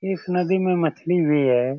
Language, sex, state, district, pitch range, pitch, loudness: Hindi, male, Bihar, Saran, 145-180 Hz, 175 Hz, -21 LUFS